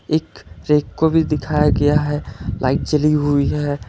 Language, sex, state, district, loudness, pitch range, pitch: Hindi, male, Karnataka, Bangalore, -18 LUFS, 140-150 Hz, 150 Hz